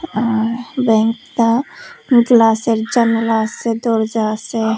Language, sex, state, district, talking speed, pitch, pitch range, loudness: Bengali, female, Tripura, Unakoti, 90 wpm, 230 Hz, 220-240 Hz, -16 LUFS